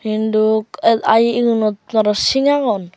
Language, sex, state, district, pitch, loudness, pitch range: Chakma, male, Tripura, Unakoti, 220 Hz, -15 LUFS, 215-230 Hz